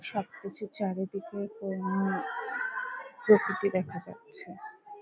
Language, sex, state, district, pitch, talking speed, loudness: Bengali, female, West Bengal, Jhargram, 205 Hz, 85 wpm, -31 LUFS